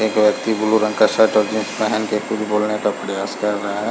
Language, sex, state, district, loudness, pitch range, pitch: Hindi, male, Chhattisgarh, Sarguja, -18 LUFS, 105-110 Hz, 110 Hz